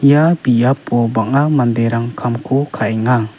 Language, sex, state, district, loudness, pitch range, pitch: Garo, male, Meghalaya, West Garo Hills, -15 LUFS, 115-140 Hz, 120 Hz